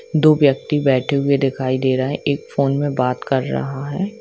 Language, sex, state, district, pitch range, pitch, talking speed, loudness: Hindi, female, Jharkhand, Sahebganj, 130-145 Hz, 140 Hz, 215 wpm, -18 LUFS